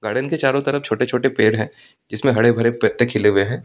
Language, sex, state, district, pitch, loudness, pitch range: Hindi, male, Delhi, New Delhi, 120 Hz, -18 LUFS, 110-135 Hz